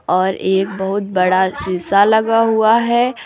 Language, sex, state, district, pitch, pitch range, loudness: Hindi, female, Uttar Pradesh, Lucknow, 195 Hz, 190-225 Hz, -15 LUFS